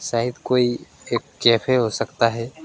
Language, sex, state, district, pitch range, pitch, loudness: Hindi, male, West Bengal, Alipurduar, 115-125 Hz, 120 Hz, -21 LUFS